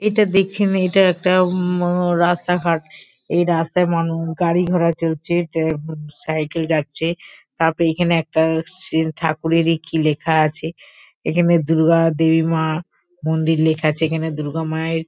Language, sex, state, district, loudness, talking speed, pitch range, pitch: Bengali, female, West Bengal, Kolkata, -18 LUFS, 145 wpm, 160-175 Hz, 165 Hz